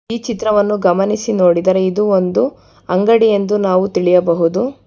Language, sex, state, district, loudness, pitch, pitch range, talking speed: Kannada, female, Karnataka, Bangalore, -14 LUFS, 195 Hz, 185-215 Hz, 110 wpm